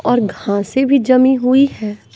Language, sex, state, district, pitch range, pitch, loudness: Hindi, female, Bihar, West Champaran, 210-265 Hz, 255 Hz, -14 LUFS